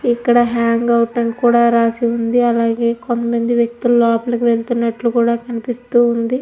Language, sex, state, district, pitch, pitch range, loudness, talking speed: Telugu, female, Andhra Pradesh, Anantapur, 235 Hz, 230-240 Hz, -16 LUFS, 120 wpm